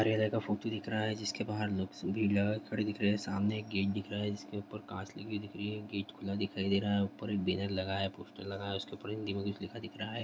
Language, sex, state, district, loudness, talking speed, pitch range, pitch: Hindi, male, Bihar, Darbhanga, -36 LUFS, 305 wpm, 100-105 Hz, 100 Hz